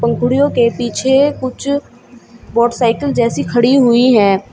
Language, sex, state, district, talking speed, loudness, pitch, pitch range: Hindi, female, Uttar Pradesh, Shamli, 120 wpm, -13 LUFS, 240 Hz, 235-265 Hz